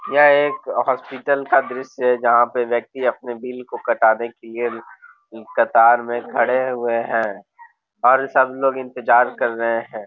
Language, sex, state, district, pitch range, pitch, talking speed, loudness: Hindi, male, Bihar, Gopalganj, 120-130 Hz, 125 Hz, 160 wpm, -19 LUFS